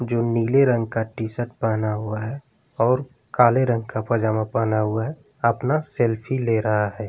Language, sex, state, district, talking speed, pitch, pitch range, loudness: Hindi, male, Bihar, Vaishali, 180 wpm, 115 Hz, 110-125 Hz, -22 LUFS